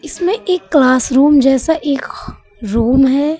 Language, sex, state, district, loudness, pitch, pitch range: Hindi, female, Uttar Pradesh, Lucknow, -13 LUFS, 280 Hz, 265-320 Hz